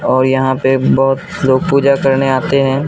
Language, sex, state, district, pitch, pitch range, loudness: Hindi, male, Bihar, Katihar, 135 Hz, 130-140 Hz, -13 LUFS